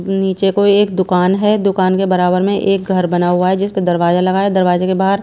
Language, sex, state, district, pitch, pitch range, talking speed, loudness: Hindi, female, Himachal Pradesh, Shimla, 190 Hz, 180-195 Hz, 240 wpm, -14 LUFS